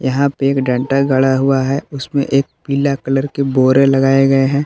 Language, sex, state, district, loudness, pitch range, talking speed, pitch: Hindi, male, Jharkhand, Palamu, -14 LUFS, 135-140 Hz, 205 wpm, 135 Hz